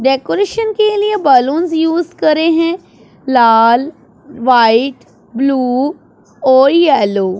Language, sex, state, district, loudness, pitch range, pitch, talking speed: Hindi, male, Punjab, Pathankot, -12 LUFS, 245-335 Hz, 275 Hz, 105 wpm